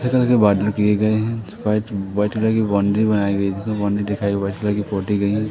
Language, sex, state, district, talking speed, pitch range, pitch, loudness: Hindi, male, Madhya Pradesh, Katni, 230 wpm, 100-110 Hz, 105 Hz, -19 LUFS